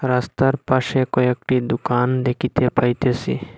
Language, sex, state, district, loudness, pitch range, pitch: Bengali, male, Assam, Hailakandi, -20 LUFS, 125-130 Hz, 125 Hz